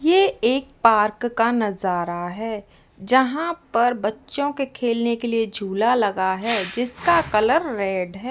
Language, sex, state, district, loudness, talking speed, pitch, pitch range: Hindi, female, Rajasthan, Jaipur, -21 LUFS, 145 wpm, 230 Hz, 205-250 Hz